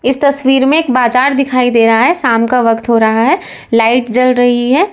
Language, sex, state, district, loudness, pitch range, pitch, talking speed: Hindi, female, Uttar Pradesh, Lalitpur, -11 LUFS, 230-265 Hz, 250 Hz, 230 wpm